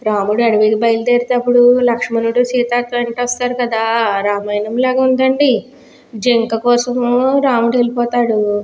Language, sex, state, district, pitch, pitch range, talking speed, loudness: Telugu, female, Andhra Pradesh, Guntur, 240 Hz, 225-245 Hz, 105 wpm, -14 LUFS